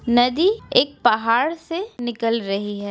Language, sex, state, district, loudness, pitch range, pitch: Hindi, female, Uttar Pradesh, Etah, -20 LUFS, 225-325 Hz, 240 Hz